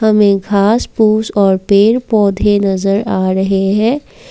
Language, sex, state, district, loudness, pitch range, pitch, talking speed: Hindi, female, Assam, Kamrup Metropolitan, -12 LUFS, 195-220 Hz, 205 Hz, 140 wpm